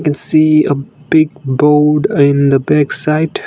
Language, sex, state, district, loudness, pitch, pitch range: English, male, Nagaland, Dimapur, -12 LUFS, 150 Hz, 140-155 Hz